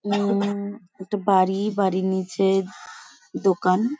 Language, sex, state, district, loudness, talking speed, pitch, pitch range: Bengali, female, West Bengal, Paschim Medinipur, -22 LUFS, 105 wpm, 195 Hz, 190-205 Hz